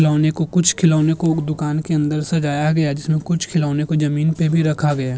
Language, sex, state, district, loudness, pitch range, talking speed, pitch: Hindi, male, Uttar Pradesh, Jyotiba Phule Nagar, -18 LUFS, 150-160 Hz, 245 wpm, 155 Hz